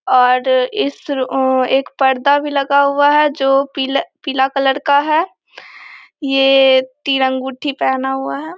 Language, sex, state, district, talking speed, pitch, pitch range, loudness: Hindi, female, Bihar, Samastipur, 160 wpm, 270 Hz, 260-280 Hz, -15 LUFS